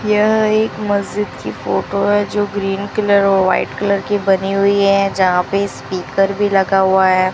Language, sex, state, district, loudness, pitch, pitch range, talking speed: Hindi, female, Rajasthan, Bikaner, -15 LUFS, 200 Hz, 195-205 Hz, 190 wpm